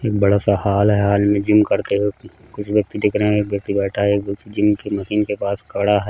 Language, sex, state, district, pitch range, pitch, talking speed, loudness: Hindi, male, Uttar Pradesh, Hamirpur, 100-105 Hz, 100 Hz, 275 wpm, -18 LUFS